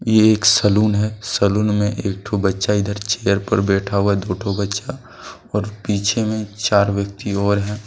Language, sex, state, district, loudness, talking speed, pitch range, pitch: Hindi, male, Jharkhand, Deoghar, -18 LUFS, 185 wpm, 100-105 Hz, 100 Hz